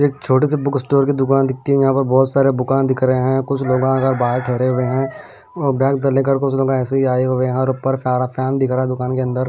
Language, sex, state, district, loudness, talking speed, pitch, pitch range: Hindi, male, Punjab, Pathankot, -17 LUFS, 235 wpm, 130 Hz, 130-135 Hz